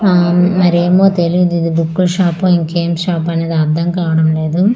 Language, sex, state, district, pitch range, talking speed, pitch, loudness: Telugu, female, Andhra Pradesh, Manyam, 165-180 Hz, 165 wpm, 175 Hz, -13 LUFS